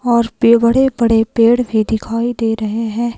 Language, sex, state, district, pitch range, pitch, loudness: Hindi, female, Himachal Pradesh, Shimla, 225-235 Hz, 230 Hz, -14 LUFS